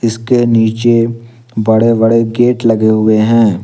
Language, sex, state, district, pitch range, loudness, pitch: Hindi, male, Jharkhand, Deoghar, 110-115 Hz, -11 LUFS, 115 Hz